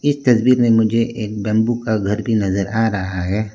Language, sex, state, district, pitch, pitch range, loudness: Hindi, male, Arunachal Pradesh, Lower Dibang Valley, 110 Hz, 105-115 Hz, -17 LUFS